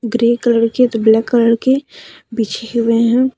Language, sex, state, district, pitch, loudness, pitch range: Hindi, female, Jharkhand, Deoghar, 235 Hz, -14 LUFS, 230-245 Hz